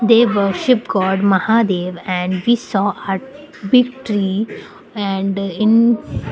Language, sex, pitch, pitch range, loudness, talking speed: English, female, 205 Hz, 190-230 Hz, -17 LUFS, 125 wpm